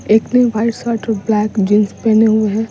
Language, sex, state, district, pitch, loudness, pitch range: Hindi, female, Bihar, Patna, 220 Hz, -14 LUFS, 210-225 Hz